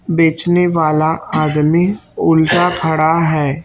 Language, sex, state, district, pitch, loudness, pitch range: Hindi, male, Chhattisgarh, Raipur, 165 Hz, -14 LUFS, 155-175 Hz